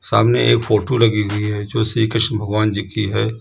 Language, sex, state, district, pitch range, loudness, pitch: Hindi, male, Uttar Pradesh, Lalitpur, 105-115 Hz, -17 LUFS, 110 Hz